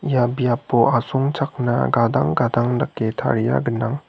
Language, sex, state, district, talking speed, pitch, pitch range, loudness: Garo, male, Meghalaya, West Garo Hills, 115 wpm, 125 Hz, 120-135 Hz, -20 LUFS